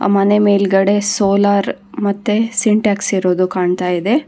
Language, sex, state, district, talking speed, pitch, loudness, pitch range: Kannada, female, Karnataka, Bangalore, 110 wpm, 200 Hz, -15 LUFS, 195-210 Hz